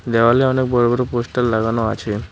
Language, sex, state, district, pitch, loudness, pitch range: Bengali, male, West Bengal, Cooch Behar, 120 Hz, -17 LUFS, 115-125 Hz